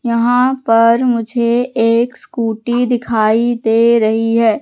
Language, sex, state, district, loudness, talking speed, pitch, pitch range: Hindi, female, Madhya Pradesh, Katni, -14 LUFS, 115 wpm, 235 Hz, 225-245 Hz